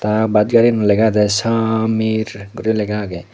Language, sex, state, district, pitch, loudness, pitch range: Chakma, male, Tripura, Dhalai, 110 Hz, -16 LUFS, 105-110 Hz